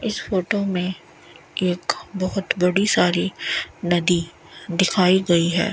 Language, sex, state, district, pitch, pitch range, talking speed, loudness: Hindi, female, Rajasthan, Bikaner, 185 Hz, 175-195 Hz, 115 wpm, -21 LUFS